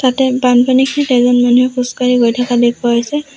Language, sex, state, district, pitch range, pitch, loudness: Assamese, female, Assam, Sonitpur, 245-260 Hz, 250 Hz, -12 LUFS